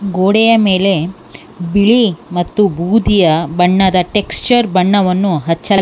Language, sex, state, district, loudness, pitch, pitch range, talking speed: Kannada, female, Karnataka, Bangalore, -12 LUFS, 195 Hz, 180-205 Hz, 95 wpm